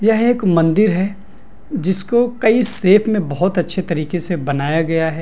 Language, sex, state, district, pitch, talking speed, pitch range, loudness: Hindi, male, Bihar, Madhepura, 185 Hz, 170 wpm, 165-215 Hz, -16 LUFS